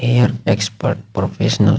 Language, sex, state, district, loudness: Hindi, male, Chhattisgarh, Sukma, -18 LUFS